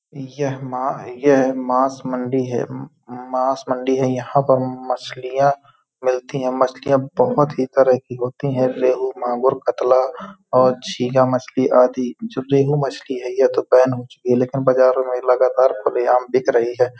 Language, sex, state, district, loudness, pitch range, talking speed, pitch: Hindi, male, Uttar Pradesh, Hamirpur, -18 LUFS, 125-135 Hz, 160 wpm, 130 Hz